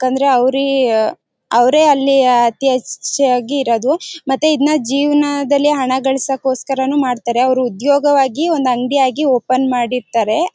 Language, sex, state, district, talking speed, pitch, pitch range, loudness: Kannada, female, Karnataka, Mysore, 115 wpm, 265 Hz, 250-285 Hz, -14 LUFS